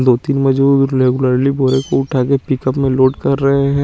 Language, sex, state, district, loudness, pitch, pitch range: Hindi, male, Chandigarh, Chandigarh, -14 LUFS, 135 Hz, 130-140 Hz